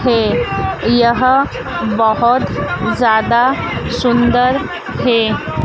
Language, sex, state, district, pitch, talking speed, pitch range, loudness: Hindi, female, Madhya Pradesh, Dhar, 240 Hz, 65 wpm, 225-250 Hz, -14 LUFS